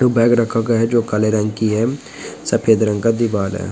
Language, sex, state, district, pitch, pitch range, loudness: Hindi, male, Chhattisgarh, Korba, 115 Hz, 105-115 Hz, -17 LUFS